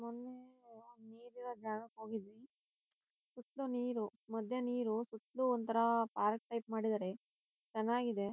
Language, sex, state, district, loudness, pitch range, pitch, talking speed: Kannada, female, Karnataka, Shimoga, -39 LUFS, 220-245 Hz, 230 Hz, 120 wpm